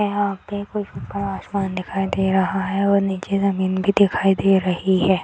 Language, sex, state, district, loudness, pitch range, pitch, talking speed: Hindi, female, Bihar, Purnia, -21 LUFS, 190-200 Hz, 195 Hz, 185 wpm